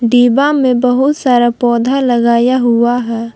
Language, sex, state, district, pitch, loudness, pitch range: Hindi, female, Jharkhand, Palamu, 245 Hz, -11 LUFS, 235-255 Hz